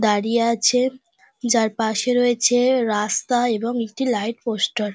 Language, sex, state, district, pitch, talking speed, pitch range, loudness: Bengali, female, West Bengal, Dakshin Dinajpur, 235 Hz, 135 wpm, 220-245 Hz, -20 LUFS